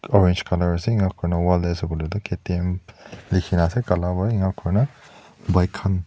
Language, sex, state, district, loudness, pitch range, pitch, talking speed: Nagamese, male, Nagaland, Dimapur, -22 LUFS, 90-100 Hz, 90 Hz, 120 wpm